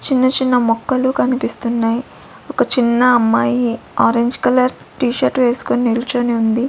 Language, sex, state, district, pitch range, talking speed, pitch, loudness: Telugu, female, Andhra Pradesh, Sri Satya Sai, 235-255 Hz, 125 wpm, 245 Hz, -16 LUFS